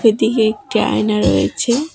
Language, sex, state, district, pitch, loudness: Bengali, female, West Bengal, Alipurduar, 215 Hz, -16 LUFS